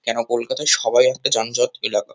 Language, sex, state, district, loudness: Bengali, male, West Bengal, Kolkata, -19 LUFS